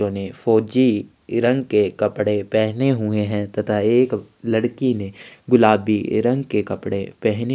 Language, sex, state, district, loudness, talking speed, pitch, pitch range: Hindi, male, Chhattisgarh, Sukma, -20 LUFS, 145 wpm, 110 Hz, 105-120 Hz